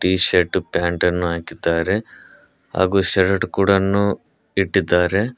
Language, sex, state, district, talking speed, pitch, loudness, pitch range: Kannada, male, Karnataka, Koppal, 100 wpm, 95 Hz, -19 LUFS, 90-100 Hz